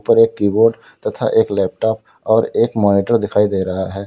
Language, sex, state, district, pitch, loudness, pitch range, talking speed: Hindi, male, Uttar Pradesh, Lalitpur, 105 Hz, -16 LUFS, 100-115 Hz, 175 wpm